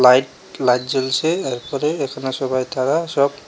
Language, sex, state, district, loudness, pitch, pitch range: Bengali, male, Tripura, West Tripura, -20 LUFS, 135 Hz, 130-140 Hz